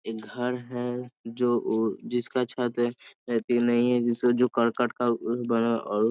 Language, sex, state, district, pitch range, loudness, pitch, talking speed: Hindi, male, Bihar, Sitamarhi, 115-125 Hz, -27 LUFS, 120 Hz, 155 wpm